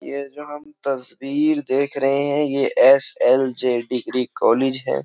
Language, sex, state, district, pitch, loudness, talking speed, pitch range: Hindi, male, Uttar Pradesh, Jyotiba Phule Nagar, 140 Hz, -17 LUFS, 145 wpm, 130-145 Hz